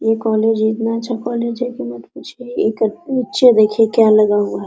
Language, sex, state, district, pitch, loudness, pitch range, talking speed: Hindi, female, Bihar, Araria, 225 Hz, -16 LUFS, 215-235 Hz, 195 wpm